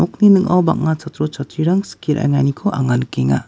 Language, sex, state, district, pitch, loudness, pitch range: Garo, male, Meghalaya, West Garo Hills, 150 Hz, -17 LUFS, 135-180 Hz